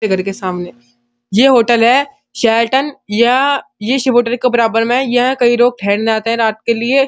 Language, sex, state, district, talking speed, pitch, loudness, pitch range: Hindi, male, Uttar Pradesh, Muzaffarnagar, 210 wpm, 240 Hz, -13 LUFS, 225-255 Hz